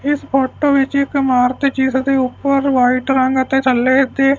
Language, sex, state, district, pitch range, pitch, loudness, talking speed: Punjabi, male, Punjab, Fazilka, 260-275 Hz, 270 Hz, -15 LUFS, 190 wpm